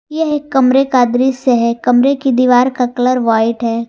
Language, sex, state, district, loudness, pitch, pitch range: Hindi, female, Jharkhand, Garhwa, -13 LUFS, 250 Hz, 240-265 Hz